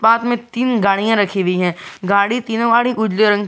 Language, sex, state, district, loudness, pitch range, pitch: Hindi, male, Jharkhand, Garhwa, -16 LUFS, 200-235 Hz, 220 Hz